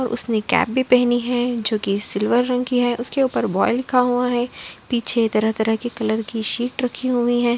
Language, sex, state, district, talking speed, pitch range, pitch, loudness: Hindi, female, Uttar Pradesh, Budaun, 215 wpm, 225-250 Hz, 240 Hz, -20 LUFS